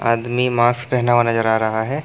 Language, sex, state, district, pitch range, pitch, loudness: Hindi, male, Chhattisgarh, Bastar, 115-125 Hz, 120 Hz, -18 LUFS